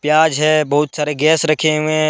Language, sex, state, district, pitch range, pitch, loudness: Hindi, male, Jharkhand, Deoghar, 150-155 Hz, 155 Hz, -15 LUFS